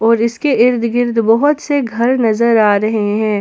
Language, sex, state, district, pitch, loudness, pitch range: Hindi, female, Jharkhand, Palamu, 230 Hz, -13 LUFS, 220-245 Hz